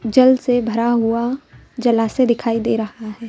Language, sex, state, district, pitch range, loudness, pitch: Hindi, female, Madhya Pradesh, Bhopal, 225-245 Hz, -17 LUFS, 235 Hz